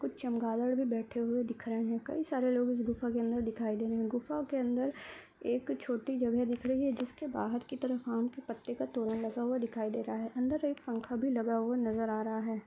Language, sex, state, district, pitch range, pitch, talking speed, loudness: Hindi, male, Uttar Pradesh, Hamirpur, 230-255 Hz, 240 Hz, 245 wpm, -35 LUFS